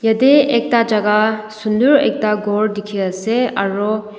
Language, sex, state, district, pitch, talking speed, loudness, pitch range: Nagamese, female, Nagaland, Dimapur, 215 Hz, 130 wpm, -16 LUFS, 210-235 Hz